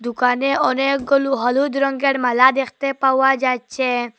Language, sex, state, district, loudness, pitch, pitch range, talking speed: Bengali, female, Assam, Hailakandi, -18 LUFS, 265 Hz, 250-275 Hz, 115 wpm